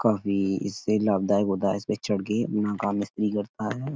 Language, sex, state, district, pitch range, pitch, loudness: Hindi, male, Uttar Pradesh, Etah, 100-105 Hz, 105 Hz, -26 LUFS